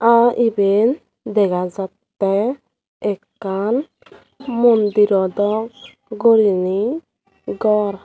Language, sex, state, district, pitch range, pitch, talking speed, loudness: Chakma, female, Tripura, Dhalai, 195-235 Hz, 210 Hz, 60 wpm, -18 LUFS